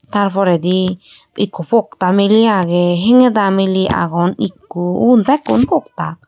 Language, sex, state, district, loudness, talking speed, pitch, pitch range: Chakma, female, Tripura, Unakoti, -14 LUFS, 125 wpm, 190 Hz, 175-215 Hz